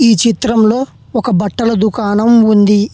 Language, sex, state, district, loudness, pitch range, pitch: Telugu, male, Telangana, Hyderabad, -12 LUFS, 210-230 Hz, 225 Hz